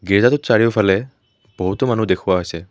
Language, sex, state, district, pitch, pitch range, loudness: Assamese, male, Assam, Kamrup Metropolitan, 100 Hz, 95-115 Hz, -17 LUFS